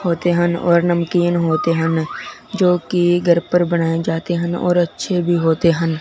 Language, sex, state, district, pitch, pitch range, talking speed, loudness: Hindi, male, Punjab, Fazilka, 175 Hz, 165-175 Hz, 190 wpm, -17 LUFS